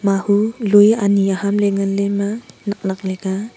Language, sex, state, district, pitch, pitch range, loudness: Wancho, female, Arunachal Pradesh, Longding, 200 Hz, 195-205 Hz, -17 LUFS